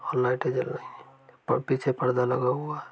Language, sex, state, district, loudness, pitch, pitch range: Hindi, male, Uttar Pradesh, Varanasi, -27 LUFS, 125 Hz, 125-130 Hz